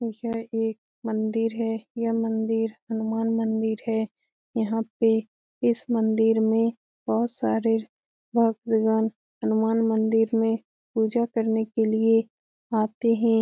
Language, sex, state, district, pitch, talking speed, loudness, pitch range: Hindi, female, Bihar, Lakhisarai, 225 Hz, 120 wpm, -25 LUFS, 220-230 Hz